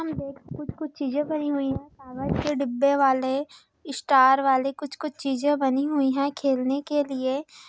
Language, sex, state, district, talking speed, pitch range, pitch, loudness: Hindi, female, Bihar, Kishanganj, 165 wpm, 265-290 Hz, 275 Hz, -24 LUFS